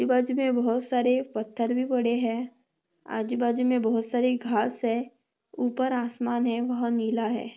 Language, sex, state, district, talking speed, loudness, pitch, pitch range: Hindi, female, Maharashtra, Chandrapur, 145 wpm, -27 LUFS, 240 Hz, 230-250 Hz